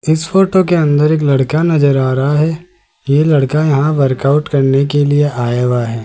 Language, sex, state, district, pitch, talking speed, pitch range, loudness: Hindi, male, Rajasthan, Jaipur, 145 Hz, 200 wpm, 135-155 Hz, -13 LUFS